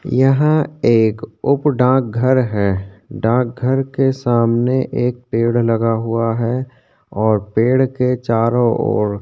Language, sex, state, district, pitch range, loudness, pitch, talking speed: Hindi, male, Chhattisgarh, Korba, 115-130 Hz, -16 LUFS, 120 Hz, 135 wpm